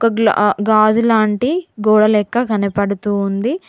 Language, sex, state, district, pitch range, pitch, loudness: Telugu, female, Telangana, Mahabubabad, 205-230 Hz, 215 Hz, -15 LUFS